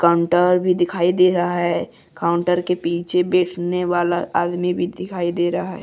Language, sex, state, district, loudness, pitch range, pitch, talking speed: Hindi, male, Jharkhand, Deoghar, -19 LUFS, 175-180 Hz, 175 Hz, 175 wpm